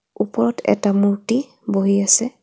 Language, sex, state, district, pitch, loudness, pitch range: Assamese, female, Assam, Kamrup Metropolitan, 200 Hz, -18 LUFS, 200-235 Hz